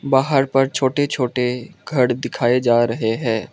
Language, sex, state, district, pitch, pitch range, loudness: Hindi, male, Arunachal Pradesh, Lower Dibang Valley, 125 Hz, 120-135 Hz, -19 LUFS